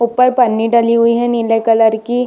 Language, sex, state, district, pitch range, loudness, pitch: Hindi, female, Bihar, Jamui, 225-240 Hz, -13 LUFS, 235 Hz